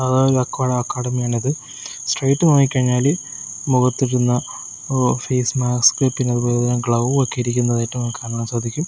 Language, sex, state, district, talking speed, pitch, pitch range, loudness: Malayalam, male, Kerala, Kozhikode, 110 wpm, 125 Hz, 120-135 Hz, -19 LUFS